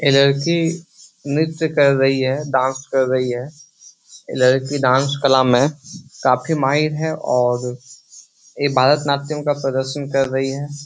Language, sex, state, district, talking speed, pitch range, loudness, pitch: Hindi, male, Bihar, Jahanabad, 145 wpm, 130-150 Hz, -18 LUFS, 140 Hz